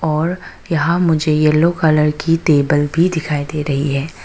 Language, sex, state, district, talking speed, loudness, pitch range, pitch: Hindi, female, Arunachal Pradesh, Papum Pare, 170 wpm, -16 LUFS, 150-165 Hz, 155 Hz